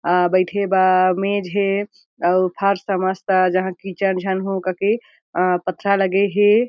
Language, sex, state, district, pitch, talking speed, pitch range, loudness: Chhattisgarhi, female, Chhattisgarh, Jashpur, 190 Hz, 155 wpm, 185-200 Hz, -19 LUFS